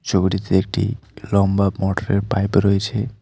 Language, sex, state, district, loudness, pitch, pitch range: Bengali, male, West Bengal, Alipurduar, -19 LUFS, 100 Hz, 100-105 Hz